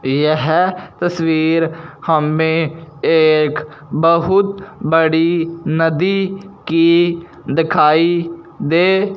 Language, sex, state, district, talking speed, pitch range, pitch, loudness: Hindi, male, Punjab, Fazilka, 70 wpm, 160-175 Hz, 165 Hz, -15 LUFS